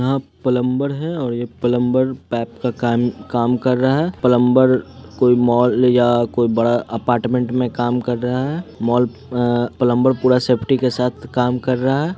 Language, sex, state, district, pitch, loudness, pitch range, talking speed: Hindi, male, Bihar, Muzaffarpur, 125 Hz, -18 LUFS, 120-130 Hz, 175 wpm